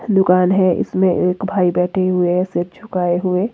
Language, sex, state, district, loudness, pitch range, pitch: Hindi, female, Himachal Pradesh, Shimla, -17 LUFS, 180-190 Hz, 185 Hz